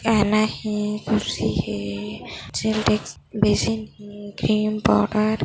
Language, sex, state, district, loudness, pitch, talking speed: Hindi, male, Chhattisgarh, Kabirdham, -22 LUFS, 210 Hz, 65 wpm